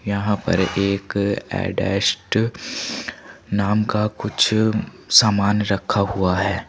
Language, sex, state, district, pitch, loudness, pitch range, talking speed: Hindi, male, Uttar Pradesh, Saharanpur, 100 Hz, -20 LUFS, 100-110 Hz, 100 wpm